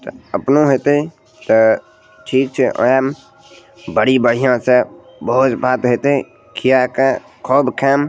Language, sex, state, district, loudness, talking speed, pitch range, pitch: Maithili, male, Bihar, Madhepura, -15 LUFS, 120 wpm, 125-140 Hz, 130 Hz